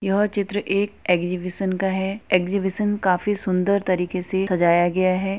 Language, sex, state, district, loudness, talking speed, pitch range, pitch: Hindi, female, Uttar Pradesh, Etah, -21 LUFS, 155 wpm, 180-200 Hz, 190 Hz